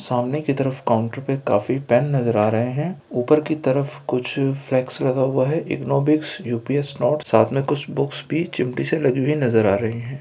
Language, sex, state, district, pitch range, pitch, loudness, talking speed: Hindi, male, Bihar, Kishanganj, 125-150 Hz, 135 Hz, -21 LUFS, 210 wpm